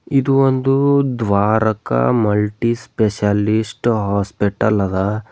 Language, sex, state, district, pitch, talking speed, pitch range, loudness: Kannada, male, Karnataka, Bidar, 110 Hz, 80 wpm, 100-120 Hz, -17 LUFS